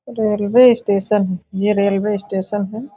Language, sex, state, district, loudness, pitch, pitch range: Hindi, female, Uttar Pradesh, Gorakhpur, -17 LUFS, 205 Hz, 200-215 Hz